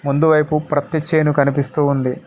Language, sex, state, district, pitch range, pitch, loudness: Telugu, male, Telangana, Mahabubabad, 140-155 Hz, 150 Hz, -17 LUFS